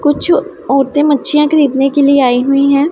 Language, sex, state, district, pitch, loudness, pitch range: Hindi, female, Punjab, Pathankot, 280 Hz, -11 LUFS, 275-295 Hz